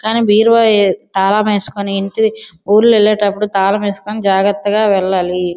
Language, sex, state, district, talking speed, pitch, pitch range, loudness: Telugu, female, Andhra Pradesh, Srikakulam, 120 wpm, 205 Hz, 195-215 Hz, -13 LUFS